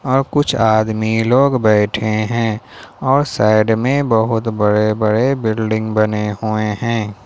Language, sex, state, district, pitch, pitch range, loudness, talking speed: Hindi, male, Jharkhand, Ranchi, 110 Hz, 110-125 Hz, -16 LUFS, 140 wpm